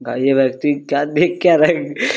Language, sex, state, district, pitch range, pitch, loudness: Hindi, male, Jharkhand, Jamtara, 135-155 Hz, 145 Hz, -16 LUFS